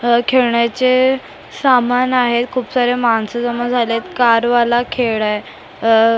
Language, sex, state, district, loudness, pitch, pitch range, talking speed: Marathi, female, Maharashtra, Mumbai Suburban, -15 LUFS, 240 Hz, 230-250 Hz, 155 wpm